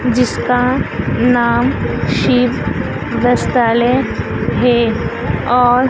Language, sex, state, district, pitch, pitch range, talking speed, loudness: Hindi, female, Madhya Pradesh, Dhar, 245 Hz, 240-250 Hz, 70 wpm, -15 LUFS